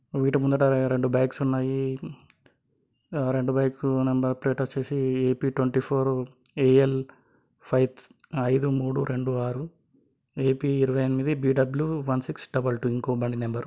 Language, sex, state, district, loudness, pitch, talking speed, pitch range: Telugu, male, Telangana, Karimnagar, -26 LUFS, 130 Hz, 155 wpm, 130-135 Hz